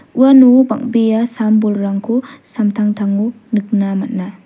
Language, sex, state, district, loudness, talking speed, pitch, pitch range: Garo, female, Meghalaya, South Garo Hills, -14 LUFS, 80 wpm, 220 Hz, 205-240 Hz